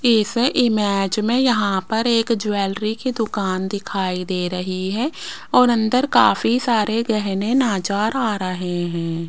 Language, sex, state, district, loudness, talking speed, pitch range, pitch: Hindi, female, Rajasthan, Jaipur, -19 LUFS, 140 wpm, 190-235 Hz, 215 Hz